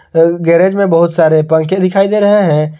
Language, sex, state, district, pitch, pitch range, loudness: Hindi, male, Jharkhand, Garhwa, 170 Hz, 160-195 Hz, -10 LUFS